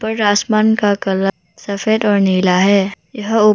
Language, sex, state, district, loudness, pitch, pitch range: Hindi, female, Arunachal Pradesh, Papum Pare, -15 LUFS, 205 Hz, 195-215 Hz